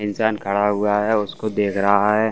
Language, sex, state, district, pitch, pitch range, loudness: Hindi, male, Bihar, Saran, 105 Hz, 100-110 Hz, -20 LUFS